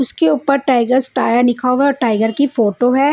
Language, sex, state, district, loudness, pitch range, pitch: Hindi, female, Punjab, Kapurthala, -15 LUFS, 240-275 Hz, 255 Hz